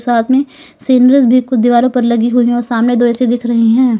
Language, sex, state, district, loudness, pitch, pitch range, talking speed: Hindi, female, Uttar Pradesh, Lalitpur, -11 LUFS, 245 Hz, 240-255 Hz, 240 wpm